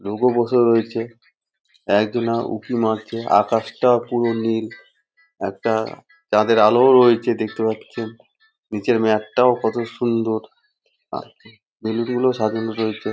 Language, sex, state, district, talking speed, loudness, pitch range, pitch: Bengali, male, West Bengal, North 24 Parganas, 120 wpm, -19 LUFS, 110-125 Hz, 115 Hz